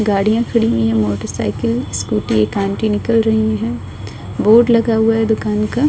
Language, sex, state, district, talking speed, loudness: Hindi, female, Uttar Pradesh, Budaun, 195 wpm, -16 LUFS